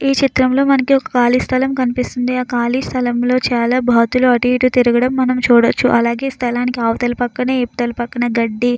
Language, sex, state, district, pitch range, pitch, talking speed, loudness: Telugu, female, Andhra Pradesh, Chittoor, 240-255 Hz, 250 Hz, 165 wpm, -15 LUFS